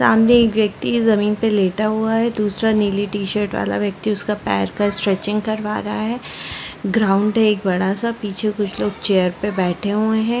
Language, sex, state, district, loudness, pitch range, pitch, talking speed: Hindi, female, Chhattisgarh, Bastar, -19 LUFS, 200-220 Hz, 210 Hz, 195 wpm